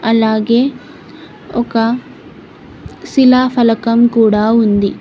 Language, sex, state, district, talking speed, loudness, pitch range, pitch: Telugu, female, Telangana, Mahabubabad, 70 wpm, -12 LUFS, 225-245 Hz, 230 Hz